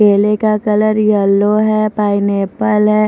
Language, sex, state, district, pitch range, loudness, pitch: Hindi, female, Maharashtra, Mumbai Suburban, 205-215 Hz, -13 LUFS, 210 Hz